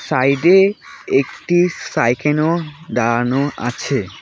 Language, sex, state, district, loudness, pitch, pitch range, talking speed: Bengali, male, West Bengal, Alipurduar, -17 LUFS, 145 Hz, 125-165 Hz, 70 wpm